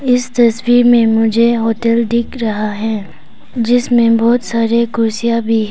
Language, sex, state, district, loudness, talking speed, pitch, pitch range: Hindi, female, Arunachal Pradesh, Papum Pare, -13 LUFS, 145 wpm, 230 Hz, 225-235 Hz